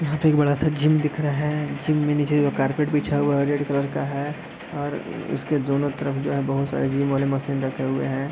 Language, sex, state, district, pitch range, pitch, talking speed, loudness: Hindi, male, Bihar, East Champaran, 140-150 Hz, 145 Hz, 245 wpm, -23 LUFS